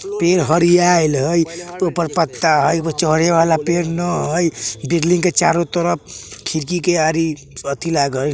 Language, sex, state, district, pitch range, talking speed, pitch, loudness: Bajjika, male, Bihar, Vaishali, 155-175 Hz, 160 wpm, 165 Hz, -17 LUFS